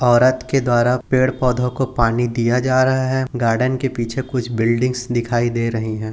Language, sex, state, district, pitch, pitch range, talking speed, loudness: Hindi, male, Chhattisgarh, Bilaspur, 125 Hz, 120-130 Hz, 195 wpm, -18 LUFS